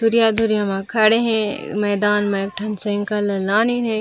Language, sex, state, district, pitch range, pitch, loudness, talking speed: Chhattisgarhi, female, Chhattisgarh, Raigarh, 205-220 Hz, 210 Hz, -19 LUFS, 150 wpm